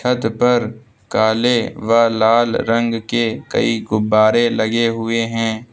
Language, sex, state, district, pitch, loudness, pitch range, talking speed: Hindi, male, Uttar Pradesh, Lucknow, 115 Hz, -16 LUFS, 110-120 Hz, 125 wpm